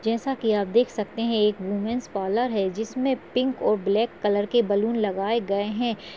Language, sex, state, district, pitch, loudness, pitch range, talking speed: Hindi, female, Chhattisgarh, Raigarh, 220 Hz, -24 LUFS, 205-240 Hz, 185 wpm